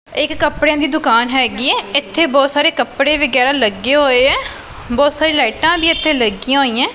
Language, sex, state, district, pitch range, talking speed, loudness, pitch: Punjabi, female, Punjab, Pathankot, 255-305 Hz, 190 wpm, -14 LUFS, 280 Hz